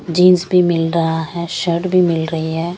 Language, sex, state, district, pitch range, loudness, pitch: Hindi, female, Chandigarh, Chandigarh, 165-180 Hz, -16 LUFS, 170 Hz